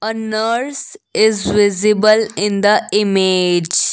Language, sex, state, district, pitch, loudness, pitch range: English, female, Assam, Kamrup Metropolitan, 210 Hz, -15 LUFS, 200-220 Hz